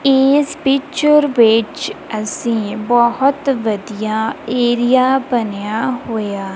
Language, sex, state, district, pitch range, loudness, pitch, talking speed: Punjabi, female, Punjab, Kapurthala, 215-270 Hz, -16 LUFS, 240 Hz, 90 wpm